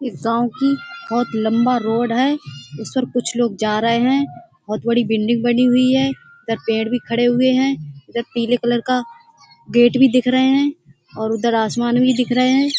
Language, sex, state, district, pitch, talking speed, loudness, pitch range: Hindi, female, Uttar Pradesh, Budaun, 240 Hz, 195 wpm, -18 LUFS, 225-255 Hz